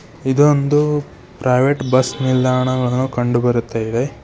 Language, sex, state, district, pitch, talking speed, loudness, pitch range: Kannada, male, Karnataka, Bidar, 130 Hz, 85 wpm, -17 LUFS, 125-140 Hz